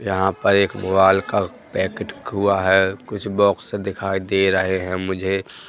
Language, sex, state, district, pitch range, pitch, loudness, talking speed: Hindi, male, Madhya Pradesh, Katni, 95-100 Hz, 95 Hz, -20 LUFS, 160 wpm